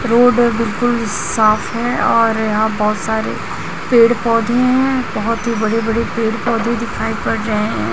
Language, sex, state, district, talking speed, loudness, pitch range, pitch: Hindi, female, Chhattisgarh, Raipur, 160 wpm, -16 LUFS, 220-235 Hz, 230 Hz